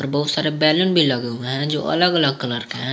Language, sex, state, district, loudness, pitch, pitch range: Hindi, male, Jharkhand, Garhwa, -19 LUFS, 145 Hz, 135-155 Hz